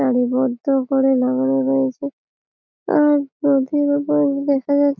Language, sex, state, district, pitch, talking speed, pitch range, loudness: Bengali, female, West Bengal, Malda, 275 Hz, 130 wpm, 265-285 Hz, -18 LUFS